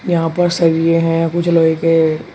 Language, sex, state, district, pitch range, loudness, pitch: Hindi, male, Uttar Pradesh, Shamli, 165-170 Hz, -14 LUFS, 165 Hz